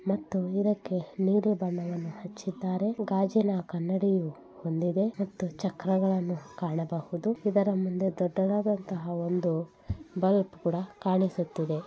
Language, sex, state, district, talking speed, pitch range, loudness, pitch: Kannada, female, Karnataka, Bellary, 90 wpm, 175-195 Hz, -30 LUFS, 185 Hz